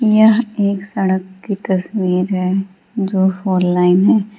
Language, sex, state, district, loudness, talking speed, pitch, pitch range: Hindi, female, Bihar, Gaya, -16 LUFS, 135 wpm, 195 Hz, 190-210 Hz